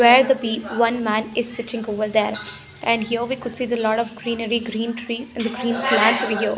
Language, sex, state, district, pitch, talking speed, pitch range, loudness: English, female, Punjab, Pathankot, 235 Hz, 235 wpm, 220-240 Hz, -21 LUFS